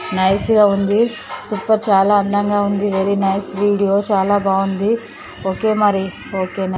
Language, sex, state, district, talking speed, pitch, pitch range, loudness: Telugu, female, Andhra Pradesh, Chittoor, 140 wpm, 200 Hz, 195-205 Hz, -17 LUFS